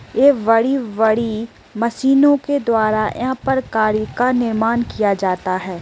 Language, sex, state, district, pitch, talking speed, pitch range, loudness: Hindi, female, Uttar Pradesh, Gorakhpur, 225 Hz, 135 wpm, 215-260 Hz, -17 LUFS